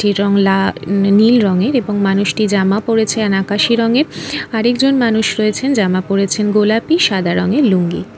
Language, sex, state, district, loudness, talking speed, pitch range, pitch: Bengali, female, West Bengal, Kolkata, -14 LUFS, 160 wpm, 195-230 Hz, 210 Hz